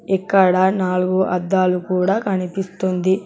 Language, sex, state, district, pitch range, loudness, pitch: Telugu, male, Telangana, Hyderabad, 180-190 Hz, -18 LUFS, 185 Hz